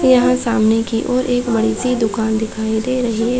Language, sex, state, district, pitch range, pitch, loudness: Chhattisgarhi, female, Chhattisgarh, Sarguja, 220-250 Hz, 230 Hz, -17 LUFS